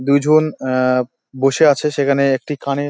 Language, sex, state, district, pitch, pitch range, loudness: Bengali, male, West Bengal, Dakshin Dinajpur, 140 Hz, 130-145 Hz, -16 LUFS